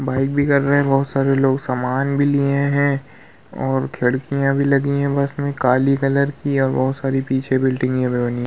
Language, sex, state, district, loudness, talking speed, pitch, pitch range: Hindi, male, Bihar, Vaishali, -19 LUFS, 205 wpm, 135 Hz, 130-140 Hz